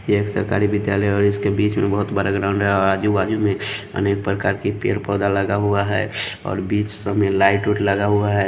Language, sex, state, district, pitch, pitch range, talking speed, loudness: Hindi, male, Haryana, Jhajjar, 100 Hz, 100-105 Hz, 210 wpm, -20 LUFS